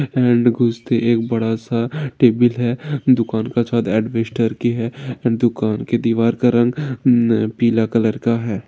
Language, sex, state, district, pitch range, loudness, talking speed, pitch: Hindi, male, Rajasthan, Nagaur, 115-120 Hz, -18 LUFS, 150 wpm, 120 Hz